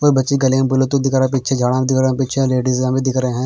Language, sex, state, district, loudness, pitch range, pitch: Hindi, male, Bihar, Patna, -16 LUFS, 130-135 Hz, 130 Hz